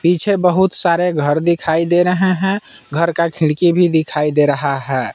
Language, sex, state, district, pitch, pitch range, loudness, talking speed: Hindi, male, Jharkhand, Palamu, 170 Hz, 150-180 Hz, -15 LUFS, 185 wpm